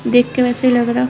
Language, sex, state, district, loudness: Hindi, female, Uttarakhand, Tehri Garhwal, -15 LUFS